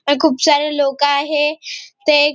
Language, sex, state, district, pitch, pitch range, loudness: Marathi, female, Maharashtra, Nagpur, 295 Hz, 285-305 Hz, -15 LUFS